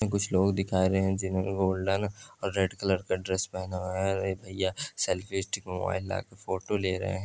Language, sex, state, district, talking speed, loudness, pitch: Hindi, male, Andhra Pradesh, Chittoor, 215 wpm, -30 LUFS, 95 Hz